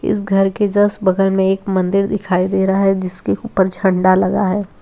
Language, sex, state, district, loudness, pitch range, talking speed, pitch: Hindi, female, Bihar, Begusarai, -16 LUFS, 185-200 Hz, 210 wpm, 195 Hz